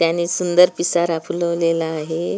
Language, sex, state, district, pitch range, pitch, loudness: Marathi, female, Maharashtra, Washim, 165-175 Hz, 170 Hz, -18 LUFS